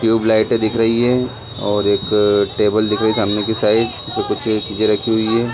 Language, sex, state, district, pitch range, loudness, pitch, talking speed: Hindi, male, Chhattisgarh, Sarguja, 105-115 Hz, -16 LUFS, 110 Hz, 215 wpm